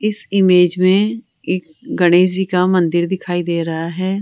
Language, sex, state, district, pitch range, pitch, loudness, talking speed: Hindi, female, Rajasthan, Jaipur, 175-190 Hz, 180 Hz, -16 LUFS, 170 wpm